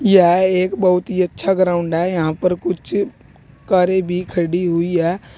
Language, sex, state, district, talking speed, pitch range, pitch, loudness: Hindi, male, Uttar Pradesh, Saharanpur, 165 wpm, 170-185 Hz, 180 Hz, -17 LUFS